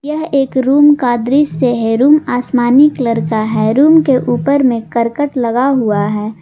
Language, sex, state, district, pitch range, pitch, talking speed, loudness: Hindi, female, Jharkhand, Garhwa, 230-285 Hz, 255 Hz, 175 wpm, -12 LUFS